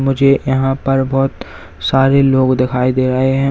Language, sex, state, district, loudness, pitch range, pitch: Hindi, male, Uttar Pradesh, Lalitpur, -14 LUFS, 130-135 Hz, 135 Hz